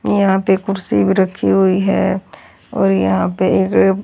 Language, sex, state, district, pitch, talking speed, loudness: Hindi, female, Haryana, Charkhi Dadri, 160 Hz, 165 wpm, -15 LUFS